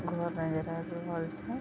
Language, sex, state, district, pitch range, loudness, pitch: Maithili, female, Bihar, Vaishali, 165-170 Hz, -35 LUFS, 170 Hz